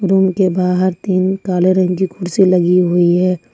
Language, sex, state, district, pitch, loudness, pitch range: Hindi, female, Jharkhand, Ranchi, 185 Hz, -14 LUFS, 180-190 Hz